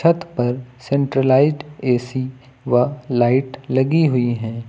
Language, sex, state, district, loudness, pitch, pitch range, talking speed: Hindi, male, Uttar Pradesh, Lucknow, -19 LUFS, 130 Hz, 125-140 Hz, 115 wpm